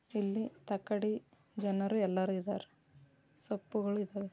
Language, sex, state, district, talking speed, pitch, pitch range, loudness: Kannada, female, Karnataka, Dharwad, 95 wpm, 200 Hz, 185-210 Hz, -36 LUFS